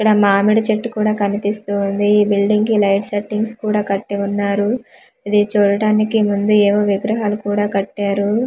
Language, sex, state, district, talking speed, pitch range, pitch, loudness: Telugu, female, Andhra Pradesh, Manyam, 150 wpm, 200-215 Hz, 205 Hz, -16 LUFS